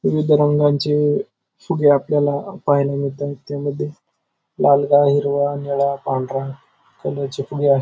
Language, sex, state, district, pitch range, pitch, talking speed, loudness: Marathi, male, Maharashtra, Pune, 140-145 Hz, 145 Hz, 115 wpm, -19 LUFS